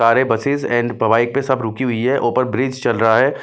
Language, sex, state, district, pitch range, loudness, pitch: Hindi, male, Bihar, West Champaran, 115-130 Hz, -17 LUFS, 120 Hz